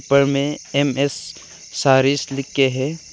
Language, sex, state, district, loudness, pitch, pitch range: Hindi, male, Arunachal Pradesh, Longding, -19 LUFS, 140 Hz, 135-140 Hz